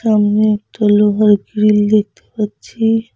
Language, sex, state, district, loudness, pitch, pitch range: Bengali, female, West Bengal, Cooch Behar, -14 LUFS, 210 Hz, 210-215 Hz